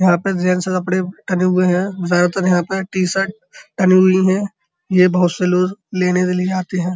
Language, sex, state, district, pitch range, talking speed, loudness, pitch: Hindi, male, Uttar Pradesh, Muzaffarnagar, 180-190 Hz, 215 wpm, -16 LUFS, 185 Hz